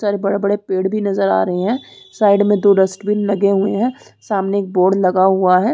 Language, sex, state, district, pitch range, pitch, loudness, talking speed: Hindi, female, Chhattisgarh, Rajnandgaon, 190-205 Hz, 200 Hz, -16 LUFS, 230 wpm